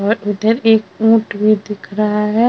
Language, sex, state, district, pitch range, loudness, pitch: Hindi, female, Bihar, Vaishali, 210-225 Hz, -15 LUFS, 215 Hz